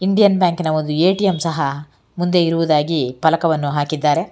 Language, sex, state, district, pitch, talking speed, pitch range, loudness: Kannada, female, Karnataka, Bangalore, 160 Hz, 140 wpm, 150-175 Hz, -17 LUFS